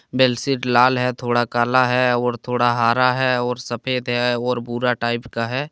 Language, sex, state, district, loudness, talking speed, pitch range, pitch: Hindi, male, Jharkhand, Deoghar, -19 LUFS, 190 wpm, 120-125 Hz, 125 Hz